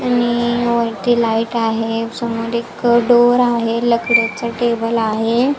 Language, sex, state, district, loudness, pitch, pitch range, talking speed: Marathi, female, Maharashtra, Nagpur, -16 LUFS, 235 Hz, 230-240 Hz, 130 wpm